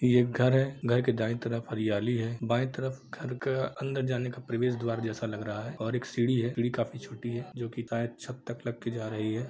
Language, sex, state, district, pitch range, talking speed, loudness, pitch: Hindi, male, Jharkhand, Jamtara, 115-125 Hz, 260 wpm, -31 LUFS, 120 Hz